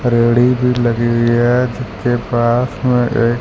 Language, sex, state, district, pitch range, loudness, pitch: Hindi, male, Punjab, Fazilka, 120-125 Hz, -14 LUFS, 120 Hz